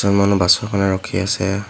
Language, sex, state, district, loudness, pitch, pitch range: Assamese, male, Assam, Hailakandi, -17 LUFS, 100 Hz, 95-100 Hz